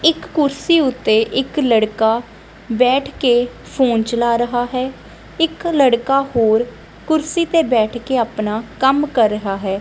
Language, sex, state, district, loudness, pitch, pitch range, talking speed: Punjabi, female, Punjab, Kapurthala, -17 LUFS, 245 Hz, 225-275 Hz, 140 wpm